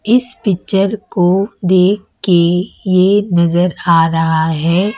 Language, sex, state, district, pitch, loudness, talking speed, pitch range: Hindi, female, Chhattisgarh, Raipur, 185 Hz, -13 LUFS, 120 wpm, 170-205 Hz